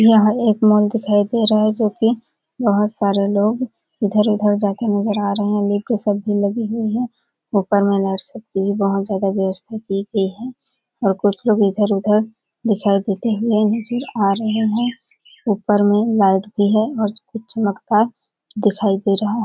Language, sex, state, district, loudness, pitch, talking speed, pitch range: Hindi, female, Chhattisgarh, Balrampur, -18 LUFS, 210 Hz, 175 wpm, 200-225 Hz